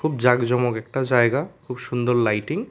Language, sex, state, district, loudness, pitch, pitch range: Bengali, male, Tripura, West Tripura, -21 LUFS, 125 Hz, 120-130 Hz